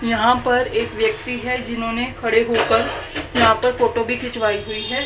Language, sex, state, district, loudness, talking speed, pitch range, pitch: Hindi, female, Haryana, Jhajjar, -19 LUFS, 175 wpm, 230-250 Hz, 235 Hz